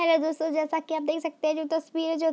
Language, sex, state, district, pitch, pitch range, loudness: Hindi, female, Bihar, Darbhanga, 320 Hz, 315-325 Hz, -28 LUFS